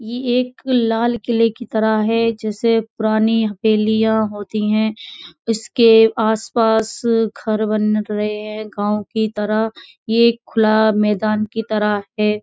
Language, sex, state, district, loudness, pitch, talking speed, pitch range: Hindi, female, Uttar Pradesh, Budaun, -17 LUFS, 220 Hz, 130 wpm, 215-225 Hz